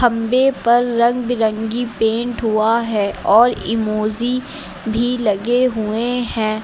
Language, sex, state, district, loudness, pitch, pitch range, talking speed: Hindi, female, Uttar Pradesh, Lucknow, -17 LUFS, 230 Hz, 220-245 Hz, 110 wpm